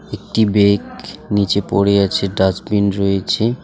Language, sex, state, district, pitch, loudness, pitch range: Bengali, male, West Bengal, Alipurduar, 100 Hz, -16 LUFS, 100-105 Hz